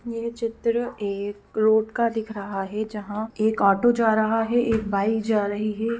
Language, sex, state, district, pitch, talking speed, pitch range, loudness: Hindi, female, Bihar, Gopalganj, 220 Hz, 190 wpm, 210-230 Hz, -24 LUFS